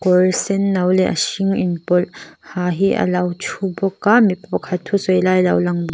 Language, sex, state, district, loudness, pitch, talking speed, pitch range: Mizo, female, Mizoram, Aizawl, -17 LUFS, 185 Hz, 160 wpm, 180-195 Hz